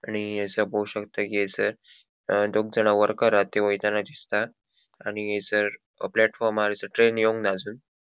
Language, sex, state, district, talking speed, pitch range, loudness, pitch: Konkani, male, Goa, North and South Goa, 150 wpm, 105-110 Hz, -25 LUFS, 105 Hz